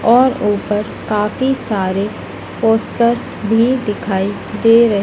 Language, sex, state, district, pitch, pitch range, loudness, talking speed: Hindi, female, Madhya Pradesh, Dhar, 215 Hz, 205-235 Hz, -16 LUFS, 105 wpm